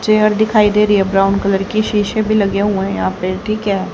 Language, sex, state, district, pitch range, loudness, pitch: Hindi, female, Haryana, Charkhi Dadri, 195-215 Hz, -15 LUFS, 205 Hz